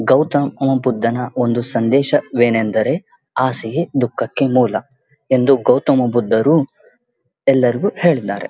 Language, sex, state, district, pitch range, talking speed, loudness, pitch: Kannada, male, Karnataka, Dharwad, 120-145 Hz, 85 wpm, -16 LUFS, 130 Hz